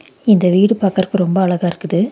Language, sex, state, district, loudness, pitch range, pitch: Tamil, female, Tamil Nadu, Nilgiris, -15 LUFS, 180-200 Hz, 190 Hz